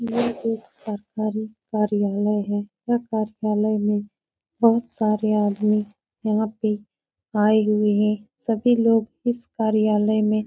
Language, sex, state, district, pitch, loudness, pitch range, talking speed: Hindi, female, Uttar Pradesh, Etah, 215 Hz, -22 LUFS, 210-225 Hz, 125 wpm